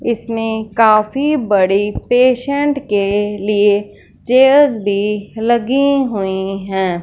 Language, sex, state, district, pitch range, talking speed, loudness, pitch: Hindi, female, Punjab, Fazilka, 205-255 Hz, 95 wpm, -15 LUFS, 220 Hz